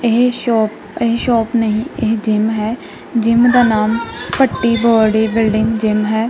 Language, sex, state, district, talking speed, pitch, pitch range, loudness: Punjabi, female, Punjab, Kapurthala, 150 wpm, 225 Hz, 220-235 Hz, -15 LUFS